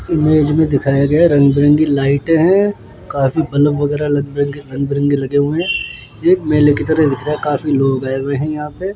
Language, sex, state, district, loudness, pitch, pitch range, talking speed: Hindi, male, Rajasthan, Jaipur, -15 LUFS, 145 Hz, 140-155 Hz, 180 wpm